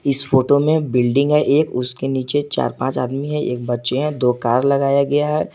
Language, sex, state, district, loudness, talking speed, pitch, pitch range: Hindi, male, Jharkhand, Garhwa, -18 LUFS, 215 wpm, 140 Hz, 125-145 Hz